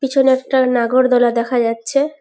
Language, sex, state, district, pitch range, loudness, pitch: Bengali, female, West Bengal, Paschim Medinipur, 240-270 Hz, -15 LUFS, 255 Hz